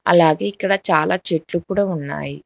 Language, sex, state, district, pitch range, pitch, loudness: Telugu, female, Telangana, Hyderabad, 155-195 Hz, 170 Hz, -18 LUFS